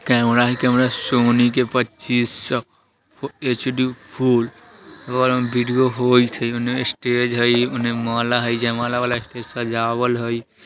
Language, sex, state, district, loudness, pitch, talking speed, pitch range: Bajjika, male, Bihar, Vaishali, -19 LUFS, 120 Hz, 145 wpm, 120-125 Hz